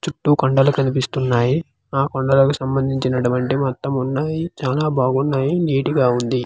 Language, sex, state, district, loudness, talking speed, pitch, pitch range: Telugu, male, Andhra Pradesh, Manyam, -19 LUFS, 130 wpm, 135 Hz, 130-145 Hz